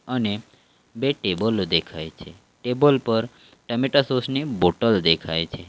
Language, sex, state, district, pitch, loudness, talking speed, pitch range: Gujarati, male, Gujarat, Valsad, 115 Hz, -22 LUFS, 135 wpm, 85-135 Hz